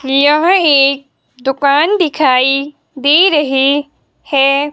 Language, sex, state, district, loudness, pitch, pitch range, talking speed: Hindi, female, Himachal Pradesh, Shimla, -11 LUFS, 285 Hz, 275-300 Hz, 90 wpm